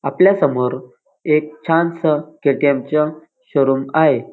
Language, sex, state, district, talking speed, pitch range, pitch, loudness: Marathi, male, Maharashtra, Dhule, 110 wpm, 140-160 Hz, 150 Hz, -17 LUFS